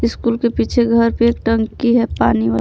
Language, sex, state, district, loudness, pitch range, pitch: Hindi, male, Jharkhand, Palamu, -16 LUFS, 225-235 Hz, 230 Hz